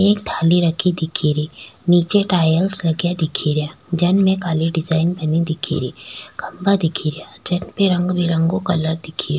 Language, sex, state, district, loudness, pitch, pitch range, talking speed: Rajasthani, female, Rajasthan, Nagaur, -18 LUFS, 170 Hz, 160-180 Hz, 160 wpm